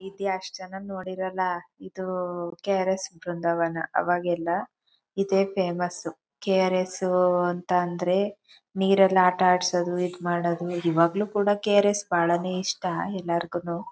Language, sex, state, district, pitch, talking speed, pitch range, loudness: Kannada, female, Karnataka, Chamarajanagar, 185 Hz, 120 wpm, 175-190 Hz, -25 LUFS